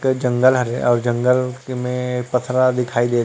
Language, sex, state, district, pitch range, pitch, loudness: Chhattisgarhi, male, Chhattisgarh, Rajnandgaon, 120-130 Hz, 125 Hz, -18 LUFS